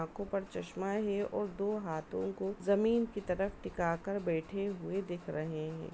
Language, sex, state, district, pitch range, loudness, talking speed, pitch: Hindi, female, Bihar, East Champaran, 165-200 Hz, -36 LUFS, 180 wpm, 195 Hz